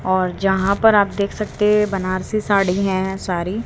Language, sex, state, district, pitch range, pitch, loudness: Hindi, female, Haryana, Rohtak, 185-210 Hz, 195 Hz, -18 LUFS